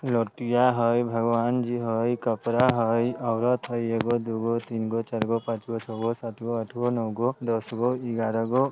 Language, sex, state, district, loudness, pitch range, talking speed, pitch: Bajjika, male, Bihar, Vaishali, -26 LUFS, 115-120 Hz, 130 wpm, 115 Hz